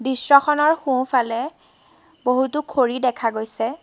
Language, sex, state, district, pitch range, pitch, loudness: Assamese, female, Assam, Sonitpur, 245-300 Hz, 265 Hz, -20 LUFS